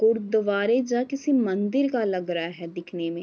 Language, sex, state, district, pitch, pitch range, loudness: Hindi, female, Uttar Pradesh, Varanasi, 205 Hz, 175-240 Hz, -25 LUFS